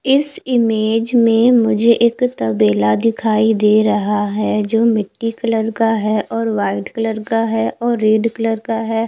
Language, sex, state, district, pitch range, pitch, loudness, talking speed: Hindi, female, Odisha, Khordha, 215-230 Hz, 225 Hz, -16 LUFS, 165 wpm